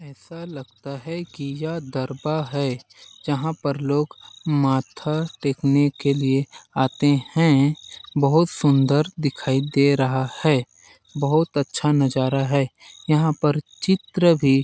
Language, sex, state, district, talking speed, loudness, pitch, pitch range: Hindi, male, Chhattisgarh, Balrampur, 130 wpm, -22 LUFS, 145 Hz, 135-155 Hz